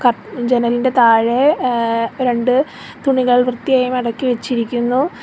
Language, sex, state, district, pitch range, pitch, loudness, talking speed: Malayalam, female, Kerala, Kollam, 235-255 Hz, 245 Hz, -16 LUFS, 90 wpm